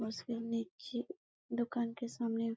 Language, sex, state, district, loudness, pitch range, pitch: Hindi, female, Chhattisgarh, Bastar, -40 LUFS, 230-240 Hz, 235 Hz